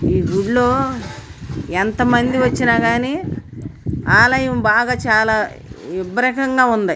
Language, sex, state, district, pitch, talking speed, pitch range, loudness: Telugu, male, Andhra Pradesh, Guntur, 240 Hz, 110 wpm, 215-255 Hz, -16 LUFS